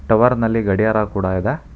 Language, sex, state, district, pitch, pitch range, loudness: Kannada, male, Karnataka, Bangalore, 110 Hz, 100-115 Hz, -17 LUFS